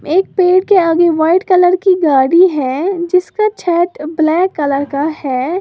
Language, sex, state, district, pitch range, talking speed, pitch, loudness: Hindi, female, Uttar Pradesh, Lalitpur, 300-370 Hz, 160 wpm, 345 Hz, -13 LUFS